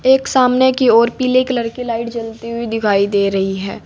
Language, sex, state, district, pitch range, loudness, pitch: Hindi, female, Uttar Pradesh, Saharanpur, 225-255 Hz, -15 LUFS, 235 Hz